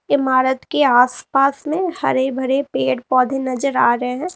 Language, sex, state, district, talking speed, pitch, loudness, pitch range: Hindi, female, Uttar Pradesh, Lalitpur, 165 wpm, 265 Hz, -17 LUFS, 255-285 Hz